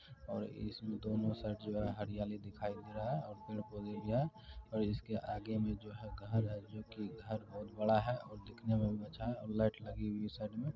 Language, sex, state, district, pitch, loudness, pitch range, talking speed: Maithili, male, Bihar, Supaul, 105 Hz, -41 LUFS, 105-110 Hz, 230 wpm